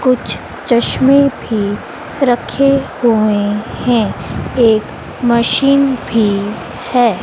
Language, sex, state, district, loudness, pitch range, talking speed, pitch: Hindi, female, Madhya Pradesh, Dhar, -14 LUFS, 215-260 Hz, 85 wpm, 235 Hz